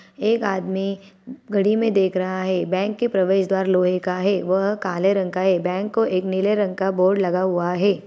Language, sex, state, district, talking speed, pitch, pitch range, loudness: Hindi, female, Chhattisgarh, Bilaspur, 215 wpm, 190 Hz, 185-200 Hz, -21 LUFS